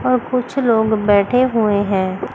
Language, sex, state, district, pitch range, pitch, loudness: Hindi, female, Chandigarh, Chandigarh, 205-250 Hz, 220 Hz, -16 LUFS